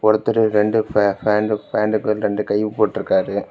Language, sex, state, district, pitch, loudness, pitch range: Tamil, male, Tamil Nadu, Kanyakumari, 105 Hz, -19 LUFS, 105-110 Hz